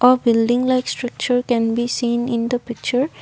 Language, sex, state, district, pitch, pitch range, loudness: English, female, Assam, Kamrup Metropolitan, 245 Hz, 235-250 Hz, -19 LUFS